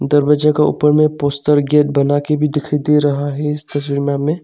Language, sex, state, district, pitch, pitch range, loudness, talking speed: Hindi, male, Arunachal Pradesh, Longding, 150 Hz, 145-150 Hz, -15 LUFS, 215 wpm